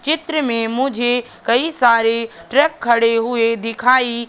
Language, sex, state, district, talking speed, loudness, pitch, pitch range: Hindi, female, Madhya Pradesh, Katni, 125 wpm, -16 LUFS, 235 Hz, 230-260 Hz